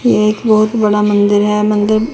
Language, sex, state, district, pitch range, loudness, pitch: Hindi, female, Chandigarh, Chandigarh, 210-215 Hz, -12 LUFS, 210 Hz